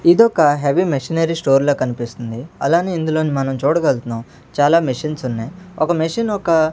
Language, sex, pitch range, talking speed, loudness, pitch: Telugu, male, 130-170 Hz, 150 wpm, -17 LUFS, 155 Hz